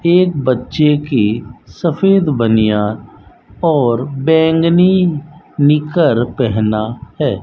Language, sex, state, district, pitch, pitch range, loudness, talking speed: Hindi, male, Rajasthan, Bikaner, 145 Hz, 120-165 Hz, -14 LUFS, 80 wpm